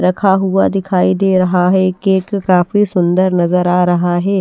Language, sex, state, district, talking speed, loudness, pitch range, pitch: Hindi, female, Odisha, Nuapada, 175 wpm, -13 LUFS, 180-195 Hz, 185 Hz